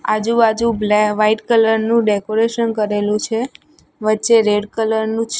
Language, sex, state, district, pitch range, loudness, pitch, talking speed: Gujarati, female, Gujarat, Gandhinagar, 215-230 Hz, -16 LUFS, 220 Hz, 145 wpm